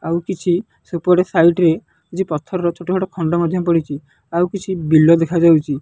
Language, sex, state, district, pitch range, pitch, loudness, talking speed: Odia, male, Odisha, Nuapada, 165-180 Hz, 170 Hz, -17 LUFS, 165 wpm